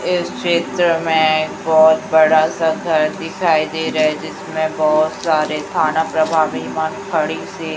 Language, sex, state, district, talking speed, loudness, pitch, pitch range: Hindi, female, Chhattisgarh, Raipur, 145 wpm, -16 LUFS, 160 Hz, 155-165 Hz